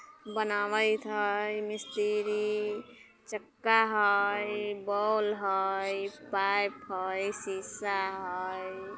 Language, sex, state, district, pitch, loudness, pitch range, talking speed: Bajjika, female, Bihar, Vaishali, 205 Hz, -31 LUFS, 195-210 Hz, 75 wpm